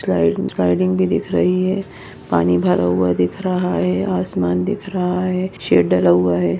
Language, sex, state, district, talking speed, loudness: Hindi, female, Maharashtra, Nagpur, 180 wpm, -18 LUFS